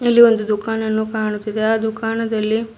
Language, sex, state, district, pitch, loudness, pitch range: Kannada, female, Karnataka, Bidar, 220 Hz, -18 LUFS, 215-225 Hz